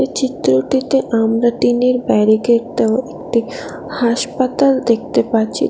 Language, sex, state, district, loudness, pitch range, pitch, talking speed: Bengali, female, West Bengal, Alipurduar, -15 LUFS, 225-260 Hz, 240 Hz, 105 wpm